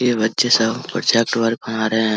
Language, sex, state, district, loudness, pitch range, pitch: Hindi, male, Bihar, Vaishali, -18 LUFS, 110-115 Hz, 115 Hz